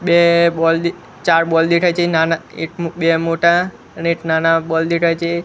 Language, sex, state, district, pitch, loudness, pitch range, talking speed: Gujarati, male, Gujarat, Gandhinagar, 165 Hz, -16 LUFS, 165-170 Hz, 175 wpm